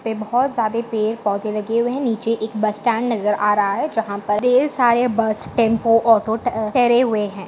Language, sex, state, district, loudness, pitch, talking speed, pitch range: Hindi, female, Chhattisgarh, Bastar, -18 LUFS, 225 Hz, 215 wpm, 215-240 Hz